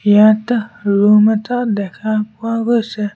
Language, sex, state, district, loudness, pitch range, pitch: Assamese, male, Assam, Sonitpur, -15 LUFS, 210-230 Hz, 215 Hz